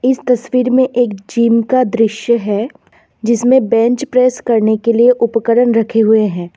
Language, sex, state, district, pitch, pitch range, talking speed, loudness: Hindi, female, Assam, Kamrup Metropolitan, 235 Hz, 225-250 Hz, 165 wpm, -13 LUFS